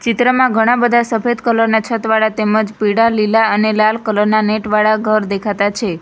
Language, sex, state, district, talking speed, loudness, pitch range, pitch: Gujarati, female, Gujarat, Valsad, 200 wpm, -14 LUFS, 215-230 Hz, 220 Hz